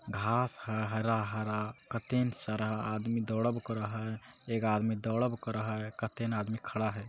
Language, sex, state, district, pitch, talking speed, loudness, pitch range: Magahi, male, Bihar, Jamui, 110 Hz, 170 wpm, -34 LUFS, 110-115 Hz